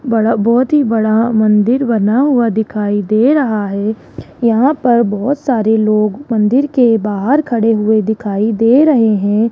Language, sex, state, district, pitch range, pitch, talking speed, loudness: Hindi, female, Rajasthan, Jaipur, 215-250 Hz, 225 Hz, 155 wpm, -13 LUFS